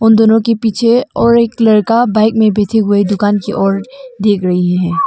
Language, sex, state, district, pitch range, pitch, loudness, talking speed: Hindi, female, Arunachal Pradesh, Longding, 205-230 Hz, 220 Hz, -12 LUFS, 190 wpm